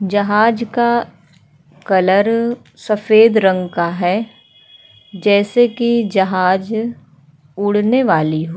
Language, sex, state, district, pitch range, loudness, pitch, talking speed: Hindi, female, Uttar Pradesh, Hamirpur, 175-225 Hz, -15 LUFS, 205 Hz, 90 wpm